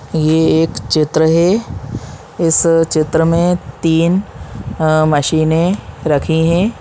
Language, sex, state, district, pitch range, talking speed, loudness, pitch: Hindi, male, Chhattisgarh, Balrampur, 155-165 Hz, 105 wpm, -14 LUFS, 160 Hz